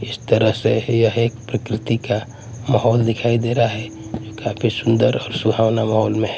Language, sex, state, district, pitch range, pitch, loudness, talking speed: Hindi, male, Punjab, Kapurthala, 110-120 Hz, 115 Hz, -19 LUFS, 180 wpm